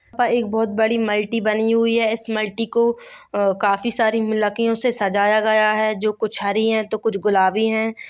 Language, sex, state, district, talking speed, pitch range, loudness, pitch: Hindi, female, Chhattisgarh, Rajnandgaon, 195 wpm, 215-230 Hz, -19 LUFS, 220 Hz